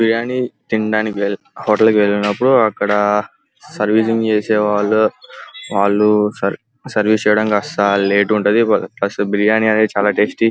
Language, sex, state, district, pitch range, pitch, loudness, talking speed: Telugu, male, Andhra Pradesh, Guntur, 105-110 Hz, 105 Hz, -16 LUFS, 115 wpm